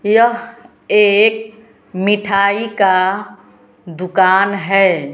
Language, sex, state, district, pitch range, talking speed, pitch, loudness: Hindi, female, Bihar, West Champaran, 185-220 Hz, 70 wpm, 200 Hz, -14 LUFS